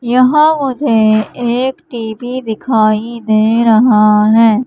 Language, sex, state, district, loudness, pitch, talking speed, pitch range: Hindi, female, Madhya Pradesh, Katni, -12 LUFS, 230 Hz, 105 wpm, 220-255 Hz